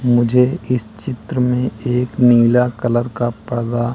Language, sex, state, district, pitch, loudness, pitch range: Hindi, male, Madhya Pradesh, Katni, 120 Hz, -17 LUFS, 120-125 Hz